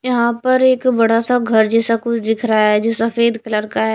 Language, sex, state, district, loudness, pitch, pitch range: Hindi, female, Chhattisgarh, Raipur, -15 LUFS, 230 Hz, 225-240 Hz